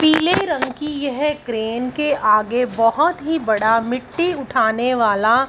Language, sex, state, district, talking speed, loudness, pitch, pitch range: Hindi, female, Punjab, Fazilka, 140 wpm, -18 LUFS, 255 Hz, 230-300 Hz